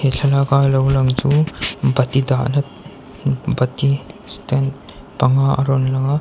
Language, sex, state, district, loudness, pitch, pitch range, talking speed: Mizo, male, Mizoram, Aizawl, -17 LUFS, 135 Hz, 130-140 Hz, 145 wpm